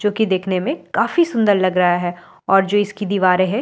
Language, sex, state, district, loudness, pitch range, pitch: Hindi, female, Delhi, New Delhi, -17 LUFS, 185-210 Hz, 195 Hz